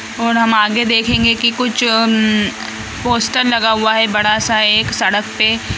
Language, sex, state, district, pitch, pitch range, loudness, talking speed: Hindi, female, Bihar, Purnia, 225 Hz, 220-235 Hz, -13 LUFS, 175 wpm